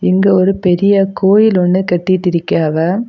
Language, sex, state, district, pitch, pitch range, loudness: Tamil, female, Tamil Nadu, Kanyakumari, 185 Hz, 180-195 Hz, -12 LUFS